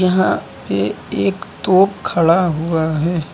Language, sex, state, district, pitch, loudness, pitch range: Hindi, male, Uttar Pradesh, Lucknow, 175 Hz, -17 LUFS, 165-190 Hz